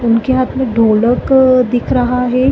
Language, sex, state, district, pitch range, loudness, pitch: Hindi, female, Chhattisgarh, Bastar, 235-260 Hz, -12 LUFS, 250 Hz